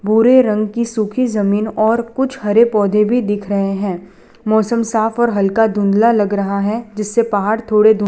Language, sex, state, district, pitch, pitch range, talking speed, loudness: Hindi, female, Gujarat, Valsad, 215 Hz, 205-230 Hz, 195 wpm, -15 LUFS